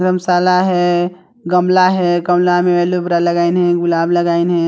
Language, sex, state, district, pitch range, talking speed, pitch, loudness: Chhattisgarhi, male, Chhattisgarh, Sarguja, 175-180 Hz, 155 wpm, 175 Hz, -14 LUFS